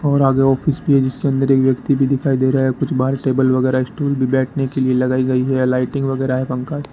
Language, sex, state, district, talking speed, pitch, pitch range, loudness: Hindi, male, Rajasthan, Bikaner, 270 wpm, 135 Hz, 130-135 Hz, -17 LUFS